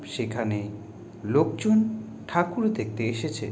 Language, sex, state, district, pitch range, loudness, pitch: Bengali, male, West Bengal, Jalpaiguri, 105-175 Hz, -26 LUFS, 115 Hz